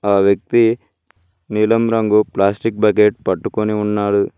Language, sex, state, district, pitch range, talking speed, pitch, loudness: Telugu, male, Telangana, Mahabubabad, 100-110 Hz, 110 wpm, 105 Hz, -16 LUFS